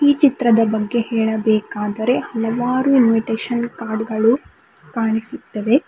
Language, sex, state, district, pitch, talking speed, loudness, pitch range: Kannada, female, Karnataka, Bidar, 225 Hz, 90 wpm, -18 LUFS, 220-250 Hz